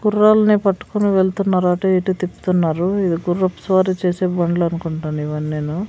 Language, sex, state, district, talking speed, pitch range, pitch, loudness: Telugu, female, Andhra Pradesh, Sri Satya Sai, 120 wpm, 170-190 Hz, 185 Hz, -18 LUFS